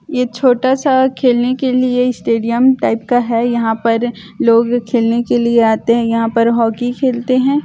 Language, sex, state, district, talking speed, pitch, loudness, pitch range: Hindi, male, Chhattisgarh, Bilaspur, 180 wpm, 240 Hz, -14 LUFS, 230-255 Hz